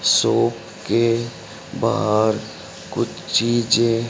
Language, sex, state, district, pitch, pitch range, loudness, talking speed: Hindi, male, Haryana, Rohtak, 115 Hz, 110-115 Hz, -20 LUFS, 75 wpm